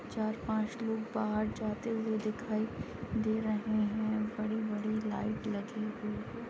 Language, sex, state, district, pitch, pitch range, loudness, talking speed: Bhojpuri, female, Bihar, Saran, 215 Hz, 215-220 Hz, -35 LUFS, 130 wpm